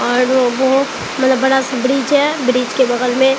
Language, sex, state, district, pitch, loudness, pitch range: Hindi, female, Bihar, Katihar, 260 Hz, -14 LUFS, 250-265 Hz